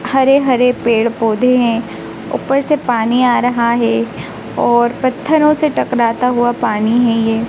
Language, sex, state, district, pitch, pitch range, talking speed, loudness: Hindi, female, Madhya Pradesh, Dhar, 240 Hz, 230-255 Hz, 150 wpm, -14 LUFS